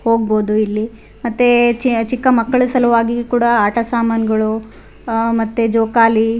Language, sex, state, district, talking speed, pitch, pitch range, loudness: Kannada, female, Karnataka, Raichur, 120 wpm, 230 Hz, 225-240 Hz, -15 LUFS